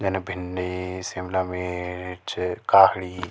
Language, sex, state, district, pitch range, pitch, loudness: Garhwali, male, Uttarakhand, Tehri Garhwal, 90-95 Hz, 90 Hz, -24 LUFS